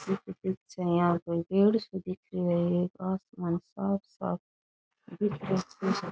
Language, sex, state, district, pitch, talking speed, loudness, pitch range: Rajasthani, female, Rajasthan, Nagaur, 185 Hz, 70 wpm, -31 LUFS, 175-195 Hz